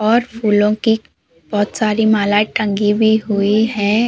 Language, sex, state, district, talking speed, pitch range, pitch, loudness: Hindi, female, Uttar Pradesh, Hamirpur, 145 wpm, 205-220 Hz, 215 Hz, -16 LUFS